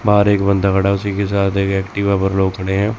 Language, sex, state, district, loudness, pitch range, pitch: Hindi, male, Chandigarh, Chandigarh, -16 LUFS, 95-100 Hz, 100 Hz